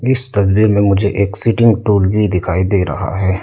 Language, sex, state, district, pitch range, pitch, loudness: Hindi, male, Arunachal Pradesh, Lower Dibang Valley, 95-105 Hz, 100 Hz, -14 LUFS